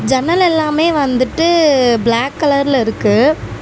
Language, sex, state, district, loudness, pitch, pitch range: Tamil, female, Tamil Nadu, Namakkal, -13 LUFS, 280 Hz, 250-315 Hz